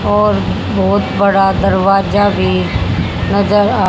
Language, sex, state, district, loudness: Hindi, female, Haryana, Charkhi Dadri, -13 LUFS